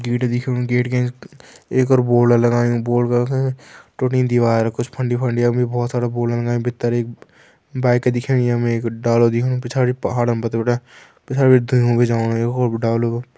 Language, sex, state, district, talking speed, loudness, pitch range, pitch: Garhwali, male, Uttarakhand, Tehri Garhwal, 175 wpm, -18 LUFS, 120-125 Hz, 120 Hz